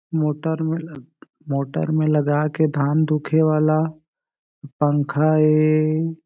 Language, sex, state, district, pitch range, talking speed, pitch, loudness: Chhattisgarhi, male, Chhattisgarh, Jashpur, 150-155 Hz, 105 wpm, 155 Hz, -20 LUFS